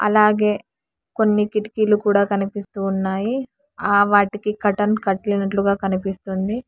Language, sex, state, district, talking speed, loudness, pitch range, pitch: Telugu, male, Telangana, Hyderabad, 100 wpm, -20 LUFS, 195-210 Hz, 205 Hz